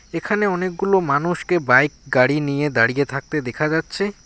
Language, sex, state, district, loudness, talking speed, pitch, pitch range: Bengali, male, West Bengal, Alipurduar, -19 LUFS, 140 wpm, 155 Hz, 140-180 Hz